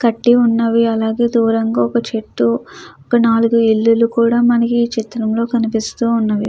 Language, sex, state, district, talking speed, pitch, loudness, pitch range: Telugu, female, Andhra Pradesh, Chittoor, 130 wpm, 230 Hz, -15 LUFS, 225-235 Hz